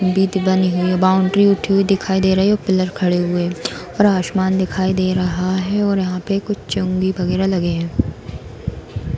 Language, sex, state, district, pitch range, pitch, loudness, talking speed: Hindi, female, Bihar, Darbhanga, 180-195 Hz, 185 Hz, -17 LUFS, 195 wpm